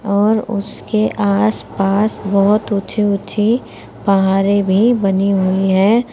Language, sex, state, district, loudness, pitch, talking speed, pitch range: Hindi, female, Uttar Pradesh, Saharanpur, -15 LUFS, 200 Hz, 115 wpm, 190-210 Hz